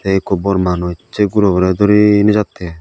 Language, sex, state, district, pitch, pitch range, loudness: Chakma, male, Tripura, Dhalai, 95 Hz, 90-105 Hz, -14 LUFS